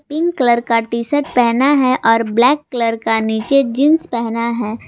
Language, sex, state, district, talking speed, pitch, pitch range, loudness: Hindi, female, Jharkhand, Garhwa, 185 wpm, 240 Hz, 230-285 Hz, -15 LUFS